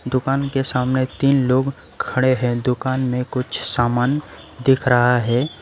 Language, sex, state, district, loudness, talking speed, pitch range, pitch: Hindi, male, West Bengal, Alipurduar, -19 LUFS, 150 wpm, 125-135 Hz, 130 Hz